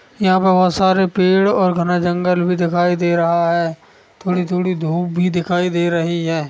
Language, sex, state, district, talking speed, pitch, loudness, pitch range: Hindi, male, Chhattisgarh, Sukma, 185 wpm, 175 Hz, -16 LUFS, 170-185 Hz